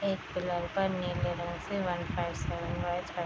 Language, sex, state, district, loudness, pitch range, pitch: Hindi, female, Bihar, East Champaran, -34 LUFS, 175-190 Hz, 175 Hz